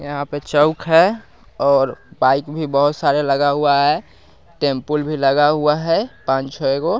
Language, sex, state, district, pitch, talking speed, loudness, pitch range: Hindi, male, Bihar, West Champaran, 145 Hz, 170 wpm, -17 LUFS, 140-150 Hz